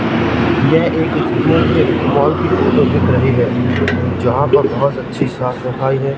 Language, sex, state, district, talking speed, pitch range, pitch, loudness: Hindi, male, Madhya Pradesh, Katni, 155 wpm, 120-135 Hz, 125 Hz, -14 LUFS